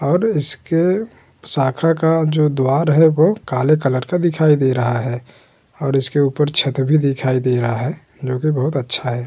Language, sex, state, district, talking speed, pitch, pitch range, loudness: Hindi, male, Uttar Pradesh, Hamirpur, 180 wpm, 140 Hz, 130-160 Hz, -17 LUFS